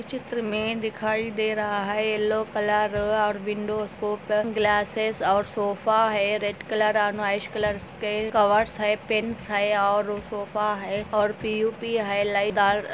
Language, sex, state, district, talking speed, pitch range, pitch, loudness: Hindi, female, Andhra Pradesh, Anantapur, 155 wpm, 205-220 Hz, 210 Hz, -25 LUFS